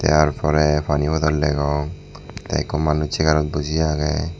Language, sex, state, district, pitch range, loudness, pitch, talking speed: Chakma, male, Tripura, Dhalai, 75-80 Hz, -20 LUFS, 75 Hz, 165 wpm